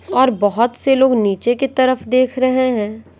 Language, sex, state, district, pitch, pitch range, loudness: Hindi, female, Bihar, Patna, 255 Hz, 230-260 Hz, -16 LUFS